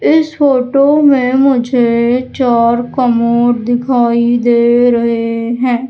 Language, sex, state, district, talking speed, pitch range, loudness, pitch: Hindi, male, Madhya Pradesh, Umaria, 100 wpm, 235-260 Hz, -11 LUFS, 240 Hz